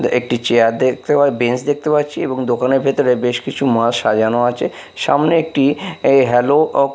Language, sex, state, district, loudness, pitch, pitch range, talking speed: Bengali, male, Bihar, Katihar, -15 LUFS, 130 Hz, 120-145 Hz, 170 wpm